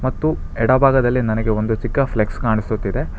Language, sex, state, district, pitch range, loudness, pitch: Kannada, male, Karnataka, Bangalore, 110-130 Hz, -18 LUFS, 115 Hz